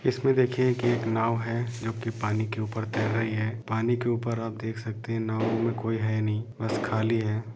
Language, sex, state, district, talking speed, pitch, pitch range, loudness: Hindi, male, Jharkhand, Jamtara, 220 wpm, 115 Hz, 110-115 Hz, -28 LUFS